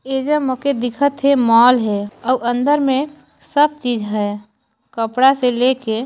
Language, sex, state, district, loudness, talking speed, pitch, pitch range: Chhattisgarhi, female, Chhattisgarh, Sarguja, -16 LUFS, 160 wpm, 250 Hz, 230-275 Hz